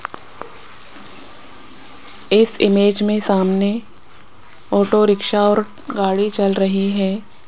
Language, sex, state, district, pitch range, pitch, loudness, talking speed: Hindi, female, Rajasthan, Jaipur, 195-210 Hz, 205 Hz, -17 LUFS, 90 wpm